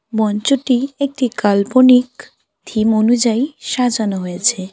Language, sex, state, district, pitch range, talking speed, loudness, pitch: Bengali, female, West Bengal, Alipurduar, 210-255 Hz, 90 wpm, -15 LUFS, 235 Hz